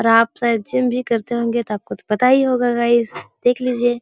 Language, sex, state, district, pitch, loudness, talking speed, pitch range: Hindi, female, Bihar, Jahanabad, 240 Hz, -18 LUFS, 255 wpm, 230-250 Hz